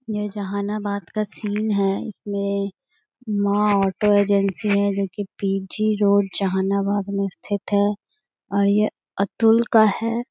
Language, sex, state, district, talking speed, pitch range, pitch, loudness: Hindi, female, Bihar, Gaya, 135 wpm, 200-215 Hz, 205 Hz, -22 LUFS